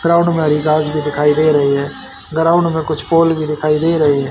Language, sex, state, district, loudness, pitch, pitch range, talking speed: Hindi, male, Haryana, Rohtak, -14 LUFS, 155 Hz, 150-165 Hz, 250 wpm